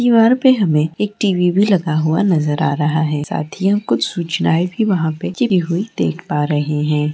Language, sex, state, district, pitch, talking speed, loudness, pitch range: Hindi, female, Bihar, Saran, 175 Hz, 220 wpm, -16 LUFS, 150-200 Hz